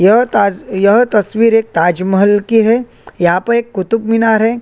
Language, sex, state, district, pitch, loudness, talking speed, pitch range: Hindi, male, Chhattisgarh, Korba, 220 Hz, -12 LUFS, 170 wpm, 195-230 Hz